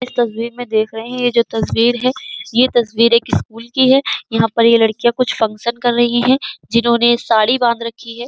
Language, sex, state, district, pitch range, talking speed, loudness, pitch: Hindi, female, Uttar Pradesh, Jyotiba Phule Nagar, 230-245 Hz, 215 wpm, -15 LUFS, 235 Hz